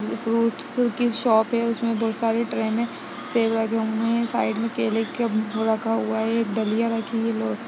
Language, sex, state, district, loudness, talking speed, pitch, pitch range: Hindi, female, Uttar Pradesh, Jyotiba Phule Nagar, -23 LUFS, 225 wpm, 225 Hz, 220-230 Hz